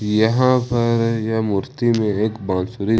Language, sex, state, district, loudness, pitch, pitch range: Hindi, male, Jharkhand, Ranchi, -19 LUFS, 110 Hz, 105-120 Hz